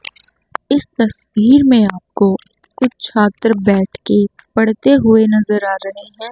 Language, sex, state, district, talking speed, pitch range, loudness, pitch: Hindi, female, Chandigarh, Chandigarh, 125 wpm, 200-235 Hz, -14 LUFS, 215 Hz